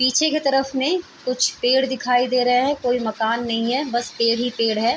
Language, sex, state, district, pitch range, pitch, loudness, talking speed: Hindi, female, Chhattisgarh, Raigarh, 235-265 Hz, 250 Hz, -20 LUFS, 230 wpm